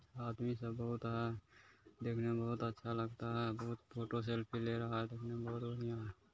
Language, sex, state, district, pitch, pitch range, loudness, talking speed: Hindi, male, Bihar, Kishanganj, 115 Hz, 115-120 Hz, -42 LUFS, 200 wpm